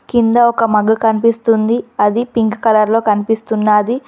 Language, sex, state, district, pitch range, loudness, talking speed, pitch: Telugu, female, Telangana, Mahabubabad, 215-235 Hz, -13 LUFS, 130 wpm, 225 Hz